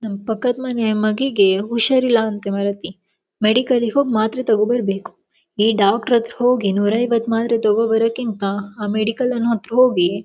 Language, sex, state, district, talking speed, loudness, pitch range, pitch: Kannada, female, Karnataka, Shimoga, 130 wpm, -18 LUFS, 205-240 Hz, 225 Hz